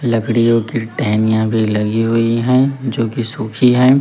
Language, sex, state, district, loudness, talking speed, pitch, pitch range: Hindi, male, Uttar Pradesh, Lalitpur, -15 LUFS, 165 wpm, 115 Hz, 110-125 Hz